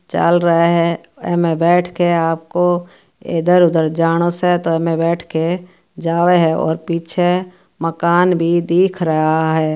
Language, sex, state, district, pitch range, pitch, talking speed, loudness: Marwari, female, Rajasthan, Churu, 165-175 Hz, 170 Hz, 135 wpm, -16 LUFS